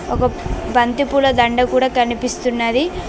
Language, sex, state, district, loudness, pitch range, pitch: Telugu, female, Telangana, Mahabubabad, -17 LUFS, 240-260 Hz, 250 Hz